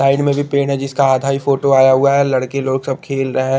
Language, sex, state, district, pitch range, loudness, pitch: Hindi, male, Chandigarh, Chandigarh, 130-140 Hz, -15 LUFS, 135 Hz